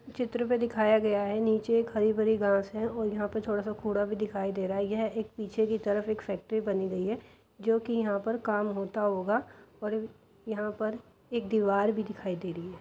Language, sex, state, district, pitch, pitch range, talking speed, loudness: Hindi, female, Uttar Pradesh, Jyotiba Phule Nagar, 215 Hz, 205-220 Hz, 225 wpm, -30 LUFS